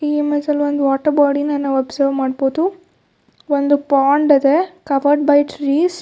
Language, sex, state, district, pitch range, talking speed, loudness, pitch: Kannada, female, Karnataka, Shimoga, 275-295 Hz, 150 wpm, -16 LUFS, 290 Hz